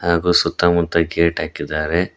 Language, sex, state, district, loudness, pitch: Kannada, male, Karnataka, Koppal, -18 LUFS, 85 Hz